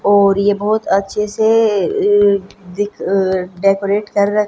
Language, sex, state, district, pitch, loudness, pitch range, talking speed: Hindi, female, Haryana, Jhajjar, 205 Hz, -15 LUFS, 195-210 Hz, 135 wpm